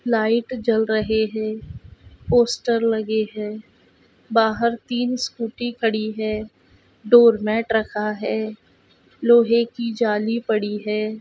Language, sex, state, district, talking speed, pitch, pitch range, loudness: Hindi, female, Chhattisgarh, Balrampur, 105 wpm, 225 Hz, 215-235 Hz, -21 LUFS